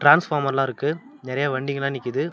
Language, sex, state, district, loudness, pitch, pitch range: Tamil, male, Tamil Nadu, Namakkal, -23 LUFS, 140 Hz, 135-150 Hz